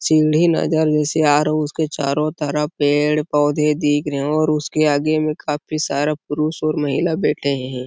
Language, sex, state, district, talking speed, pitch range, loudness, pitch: Hindi, male, Chhattisgarh, Sarguja, 185 wpm, 145-155 Hz, -18 LUFS, 150 Hz